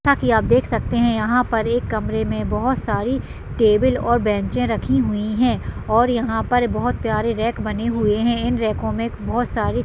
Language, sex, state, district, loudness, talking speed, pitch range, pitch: Hindi, female, Uttarakhand, Uttarkashi, -20 LUFS, 205 wpm, 210-240 Hz, 225 Hz